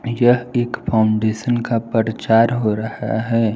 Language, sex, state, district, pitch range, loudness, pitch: Hindi, male, Jharkhand, Palamu, 110-120 Hz, -18 LUFS, 115 Hz